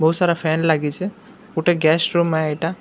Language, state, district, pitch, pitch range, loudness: Sambalpuri, Odisha, Sambalpur, 165 Hz, 160-175 Hz, -19 LUFS